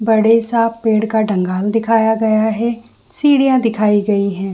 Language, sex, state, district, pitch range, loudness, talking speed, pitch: Hindi, female, Jharkhand, Jamtara, 210-230 Hz, -15 LUFS, 170 wpm, 220 Hz